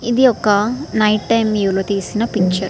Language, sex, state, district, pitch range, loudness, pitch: Telugu, female, Andhra Pradesh, Srikakulam, 195-230 Hz, -16 LUFS, 215 Hz